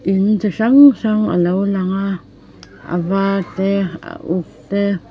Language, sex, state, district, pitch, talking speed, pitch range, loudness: Mizo, female, Mizoram, Aizawl, 195 Hz, 165 wpm, 175-200 Hz, -16 LUFS